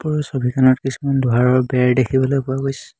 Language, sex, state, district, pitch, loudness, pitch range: Assamese, male, Assam, Hailakandi, 130 Hz, -17 LUFS, 125-135 Hz